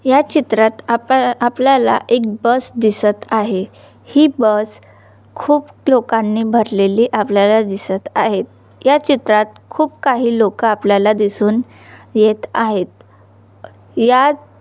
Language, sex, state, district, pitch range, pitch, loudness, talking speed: Marathi, female, Maharashtra, Solapur, 210-255 Hz, 225 Hz, -15 LUFS, 105 wpm